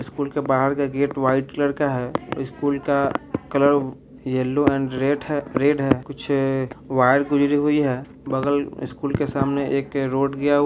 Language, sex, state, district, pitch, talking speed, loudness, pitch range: Bhojpuri, male, Bihar, Saran, 140 Hz, 180 wpm, -22 LUFS, 135-145 Hz